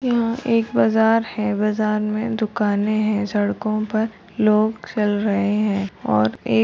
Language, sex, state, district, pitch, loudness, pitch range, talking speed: Hindi, female, Maharashtra, Chandrapur, 215 Hz, -20 LUFS, 205-220 Hz, 155 wpm